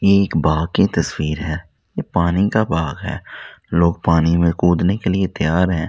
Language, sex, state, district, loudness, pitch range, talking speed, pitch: Hindi, male, Delhi, New Delhi, -18 LUFS, 80-95 Hz, 195 wpm, 85 Hz